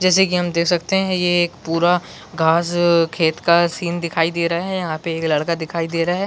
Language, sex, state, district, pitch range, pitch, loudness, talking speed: Hindi, male, Chhattisgarh, Bilaspur, 165-175 Hz, 170 Hz, -18 LUFS, 250 wpm